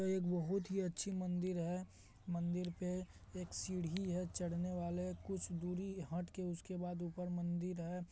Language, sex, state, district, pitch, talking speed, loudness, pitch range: Hindi, male, Bihar, Madhepura, 180 Hz, 165 wpm, -42 LUFS, 175-185 Hz